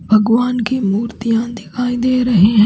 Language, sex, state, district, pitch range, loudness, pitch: Hindi, female, Chhattisgarh, Raipur, 215-245 Hz, -16 LUFS, 230 Hz